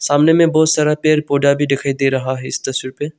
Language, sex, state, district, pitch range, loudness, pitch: Hindi, male, Arunachal Pradesh, Longding, 135-155 Hz, -15 LUFS, 145 Hz